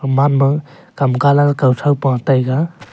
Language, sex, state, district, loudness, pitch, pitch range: Wancho, male, Arunachal Pradesh, Longding, -15 LUFS, 140 Hz, 135-145 Hz